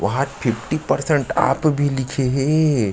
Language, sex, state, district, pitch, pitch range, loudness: Chhattisgarhi, male, Chhattisgarh, Sarguja, 135 Hz, 130-150 Hz, -19 LUFS